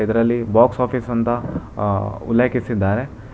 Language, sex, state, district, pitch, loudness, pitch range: Kannada, male, Karnataka, Bangalore, 115 Hz, -19 LUFS, 110-125 Hz